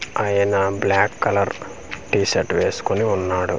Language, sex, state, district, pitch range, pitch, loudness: Telugu, male, Andhra Pradesh, Manyam, 95-100 Hz, 100 Hz, -20 LUFS